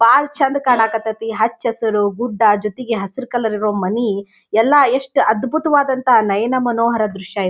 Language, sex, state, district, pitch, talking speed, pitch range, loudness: Kannada, female, Karnataka, Dharwad, 225 Hz, 150 wpm, 210-255 Hz, -17 LUFS